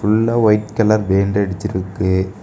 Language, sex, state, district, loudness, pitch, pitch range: Tamil, male, Tamil Nadu, Kanyakumari, -17 LUFS, 100 Hz, 95-110 Hz